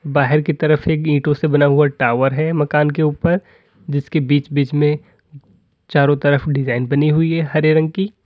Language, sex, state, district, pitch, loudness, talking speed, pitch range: Hindi, male, Uttar Pradesh, Lalitpur, 150 Hz, -16 LUFS, 195 wpm, 145-155 Hz